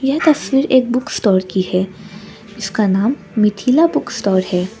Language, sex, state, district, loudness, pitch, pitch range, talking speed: Hindi, female, Arunachal Pradesh, Lower Dibang Valley, -16 LUFS, 210 Hz, 195-260 Hz, 160 wpm